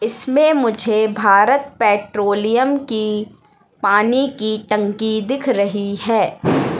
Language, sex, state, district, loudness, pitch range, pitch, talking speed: Hindi, female, Madhya Pradesh, Katni, -17 LUFS, 205-255 Hz, 220 Hz, 95 wpm